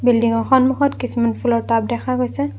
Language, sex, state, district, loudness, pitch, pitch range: Assamese, female, Assam, Kamrup Metropolitan, -18 LUFS, 245 Hz, 230-260 Hz